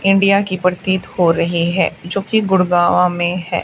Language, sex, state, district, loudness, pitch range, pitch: Hindi, female, Haryana, Charkhi Dadri, -15 LUFS, 175-195 Hz, 180 Hz